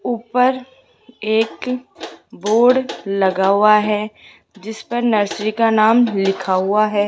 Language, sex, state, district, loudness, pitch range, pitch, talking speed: Hindi, female, Rajasthan, Jaipur, -17 LUFS, 205-240 Hz, 215 Hz, 120 wpm